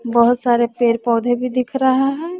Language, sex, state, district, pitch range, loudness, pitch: Hindi, female, Bihar, West Champaran, 235-260 Hz, -17 LUFS, 245 Hz